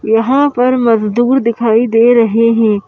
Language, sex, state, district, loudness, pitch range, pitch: Hindi, female, Madhya Pradesh, Bhopal, -11 LUFS, 225-245 Hz, 230 Hz